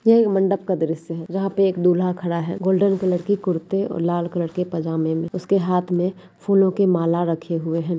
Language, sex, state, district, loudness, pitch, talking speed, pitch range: Hindi, female, Uttarakhand, Tehri Garhwal, -21 LUFS, 180 Hz, 235 wpm, 170-195 Hz